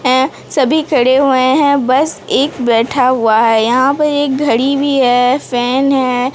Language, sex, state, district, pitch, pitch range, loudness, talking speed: Hindi, female, Odisha, Sambalpur, 260 Hz, 250-280 Hz, -12 LUFS, 170 wpm